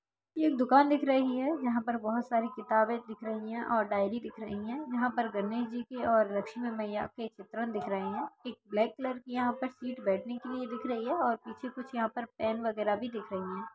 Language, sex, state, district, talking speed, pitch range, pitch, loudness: Bhojpuri, female, Bihar, Saran, 245 wpm, 220-250 Hz, 235 Hz, -33 LUFS